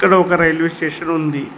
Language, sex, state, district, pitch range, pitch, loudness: Telugu, male, Telangana, Mahabubabad, 160-175 Hz, 165 Hz, -16 LUFS